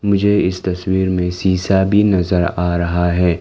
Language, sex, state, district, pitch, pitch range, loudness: Hindi, male, Arunachal Pradesh, Lower Dibang Valley, 90 Hz, 90-95 Hz, -16 LUFS